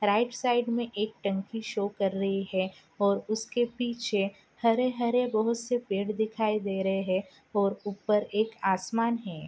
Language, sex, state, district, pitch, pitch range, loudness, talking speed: Hindi, female, Maharashtra, Nagpur, 210 Hz, 195-235 Hz, -29 LUFS, 165 wpm